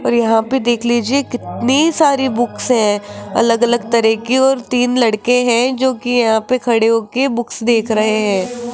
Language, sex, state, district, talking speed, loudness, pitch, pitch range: Hindi, female, Rajasthan, Jaipur, 185 wpm, -15 LUFS, 240 Hz, 225-255 Hz